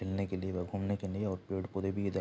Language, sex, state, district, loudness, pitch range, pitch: Hindi, male, Bihar, Saharsa, -36 LUFS, 95-100 Hz, 95 Hz